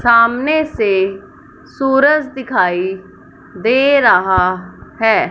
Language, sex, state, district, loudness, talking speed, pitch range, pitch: Hindi, female, Punjab, Fazilka, -14 LUFS, 80 wpm, 190-280 Hz, 235 Hz